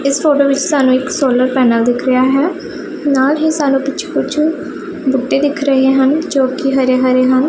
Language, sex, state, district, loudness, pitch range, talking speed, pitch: Punjabi, female, Punjab, Pathankot, -13 LUFS, 260-300 Hz, 190 wpm, 275 Hz